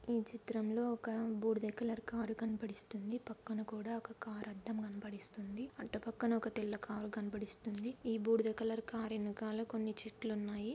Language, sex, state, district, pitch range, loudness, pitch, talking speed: Telugu, female, Andhra Pradesh, Anantapur, 215-230 Hz, -41 LUFS, 220 Hz, 150 wpm